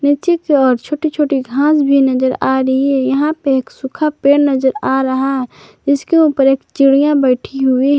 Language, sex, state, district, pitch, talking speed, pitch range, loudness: Hindi, male, Jharkhand, Garhwa, 275 Hz, 205 wpm, 265-290 Hz, -14 LUFS